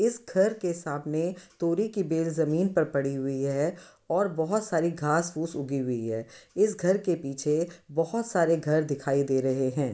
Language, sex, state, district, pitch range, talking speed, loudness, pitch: Hindi, male, Uttar Pradesh, Muzaffarnagar, 140-180 Hz, 185 wpm, -28 LUFS, 160 Hz